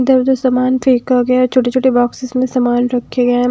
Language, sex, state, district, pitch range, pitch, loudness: Hindi, female, Bihar, Katihar, 245-255 Hz, 255 Hz, -14 LUFS